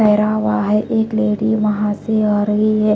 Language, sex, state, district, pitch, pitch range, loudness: Hindi, female, Bihar, Patna, 215 Hz, 210-215 Hz, -17 LUFS